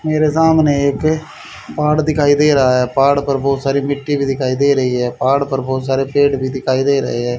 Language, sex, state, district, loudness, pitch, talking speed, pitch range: Hindi, male, Haryana, Charkhi Dadri, -15 LUFS, 140 Hz, 225 wpm, 130-145 Hz